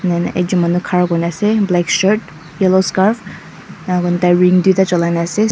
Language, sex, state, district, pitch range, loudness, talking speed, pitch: Nagamese, female, Mizoram, Aizawl, 175-190 Hz, -14 LUFS, 230 wpm, 180 Hz